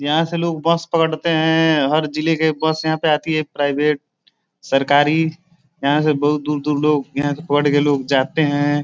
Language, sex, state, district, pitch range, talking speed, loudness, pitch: Hindi, male, Uttar Pradesh, Deoria, 145-160 Hz, 195 wpm, -18 LUFS, 155 Hz